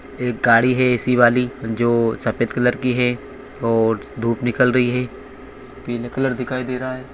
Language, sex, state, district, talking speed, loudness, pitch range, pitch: Hindi, male, Bihar, Purnia, 175 wpm, -19 LUFS, 120-130 Hz, 125 Hz